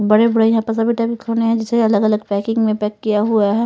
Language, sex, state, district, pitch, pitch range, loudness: Hindi, female, Punjab, Fazilka, 225 Hz, 215-230 Hz, -16 LUFS